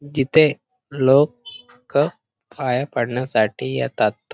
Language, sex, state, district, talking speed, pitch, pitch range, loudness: Marathi, male, Maharashtra, Pune, 85 wpm, 135 Hz, 125-150 Hz, -20 LUFS